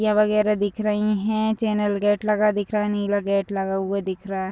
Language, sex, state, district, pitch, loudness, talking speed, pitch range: Hindi, female, Uttar Pradesh, Deoria, 205 Hz, -22 LUFS, 240 wpm, 200-210 Hz